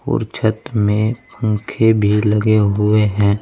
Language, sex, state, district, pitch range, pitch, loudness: Hindi, male, Uttar Pradesh, Saharanpur, 105-110 Hz, 105 Hz, -16 LUFS